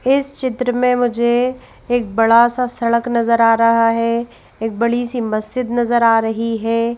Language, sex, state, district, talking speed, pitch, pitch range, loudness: Hindi, female, Madhya Pradesh, Bhopal, 165 wpm, 235 Hz, 230-245 Hz, -16 LUFS